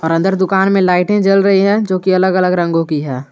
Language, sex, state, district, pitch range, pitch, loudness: Hindi, male, Jharkhand, Garhwa, 170-195 Hz, 185 Hz, -13 LUFS